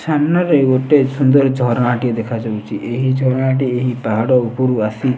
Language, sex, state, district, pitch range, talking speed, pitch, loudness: Odia, male, Odisha, Nuapada, 120-135 Hz, 125 wpm, 130 Hz, -16 LUFS